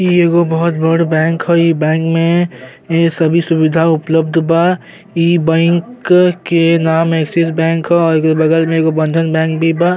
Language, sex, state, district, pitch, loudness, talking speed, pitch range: Bhojpuri, male, Uttar Pradesh, Gorakhpur, 165 Hz, -13 LUFS, 175 wpm, 160-170 Hz